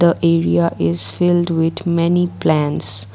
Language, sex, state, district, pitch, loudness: English, female, Assam, Kamrup Metropolitan, 165 Hz, -16 LUFS